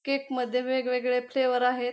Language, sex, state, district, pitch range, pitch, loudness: Marathi, female, Maharashtra, Pune, 250-260 Hz, 250 Hz, -27 LUFS